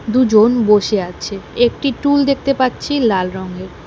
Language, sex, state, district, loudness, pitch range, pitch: Bengali, female, West Bengal, Alipurduar, -15 LUFS, 200-270 Hz, 230 Hz